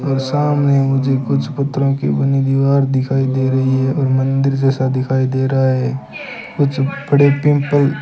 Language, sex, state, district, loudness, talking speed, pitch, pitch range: Hindi, male, Rajasthan, Bikaner, -16 LUFS, 165 wpm, 135 Hz, 130-140 Hz